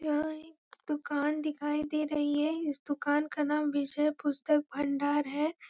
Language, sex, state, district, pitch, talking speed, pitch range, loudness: Hindi, female, Chhattisgarh, Bastar, 295 Hz, 170 wpm, 290-305 Hz, -32 LUFS